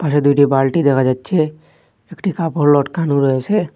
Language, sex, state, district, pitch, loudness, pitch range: Bengali, male, Assam, Hailakandi, 145 Hz, -16 LUFS, 140-165 Hz